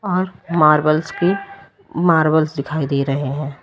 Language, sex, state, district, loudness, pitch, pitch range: Hindi, female, Uttar Pradesh, Lalitpur, -18 LUFS, 155 Hz, 145-180 Hz